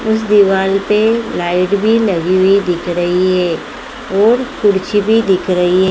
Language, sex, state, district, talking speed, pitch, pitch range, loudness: Hindi, female, Madhya Pradesh, Dhar, 160 wpm, 195 Hz, 180-215 Hz, -13 LUFS